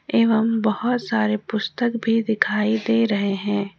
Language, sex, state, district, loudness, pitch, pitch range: Hindi, female, Jharkhand, Ranchi, -21 LUFS, 220 Hz, 205-230 Hz